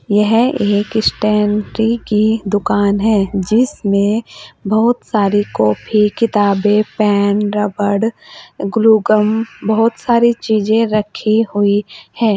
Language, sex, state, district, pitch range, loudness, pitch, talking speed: Hindi, female, Uttar Pradesh, Saharanpur, 205-225 Hz, -15 LUFS, 215 Hz, 95 wpm